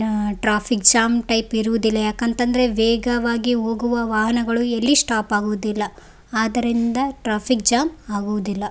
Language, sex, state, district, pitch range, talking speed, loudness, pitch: Kannada, female, Karnataka, Raichur, 215-240 Hz, 105 wpm, -19 LUFS, 230 Hz